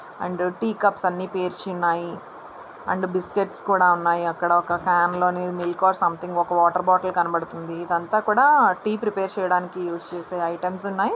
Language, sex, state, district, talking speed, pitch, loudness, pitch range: Telugu, female, Andhra Pradesh, Chittoor, 135 wpm, 180 Hz, -22 LUFS, 175-190 Hz